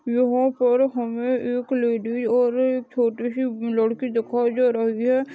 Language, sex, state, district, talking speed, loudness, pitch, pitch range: Hindi, female, Chhattisgarh, Balrampur, 155 wpm, -22 LUFS, 245 Hz, 235-255 Hz